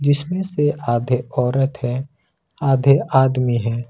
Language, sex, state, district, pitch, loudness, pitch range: Hindi, male, Jharkhand, Ranchi, 135 Hz, -19 LUFS, 125-145 Hz